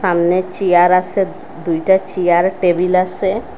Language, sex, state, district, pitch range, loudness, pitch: Bengali, female, Assam, Hailakandi, 175-190 Hz, -15 LUFS, 185 Hz